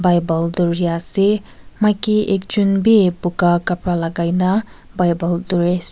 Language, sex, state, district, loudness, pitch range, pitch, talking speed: Nagamese, female, Nagaland, Kohima, -17 LUFS, 175-200 Hz, 180 Hz, 130 wpm